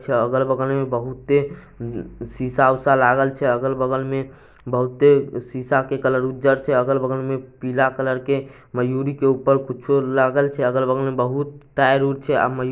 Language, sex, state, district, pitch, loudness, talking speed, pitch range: Maithili, male, Bihar, Samastipur, 135 Hz, -20 LUFS, 155 wpm, 130-135 Hz